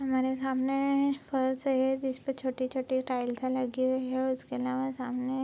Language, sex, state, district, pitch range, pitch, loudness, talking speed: Hindi, female, Bihar, Araria, 255-265 Hz, 260 Hz, -31 LUFS, 155 wpm